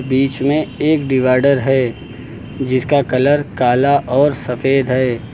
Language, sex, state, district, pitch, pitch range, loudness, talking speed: Hindi, male, Uttar Pradesh, Lucknow, 130 Hz, 125-140 Hz, -15 LUFS, 125 wpm